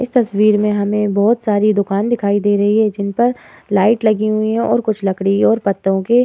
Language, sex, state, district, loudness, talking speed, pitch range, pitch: Hindi, female, Uttar Pradesh, Muzaffarnagar, -15 LUFS, 230 wpm, 200-220 Hz, 210 Hz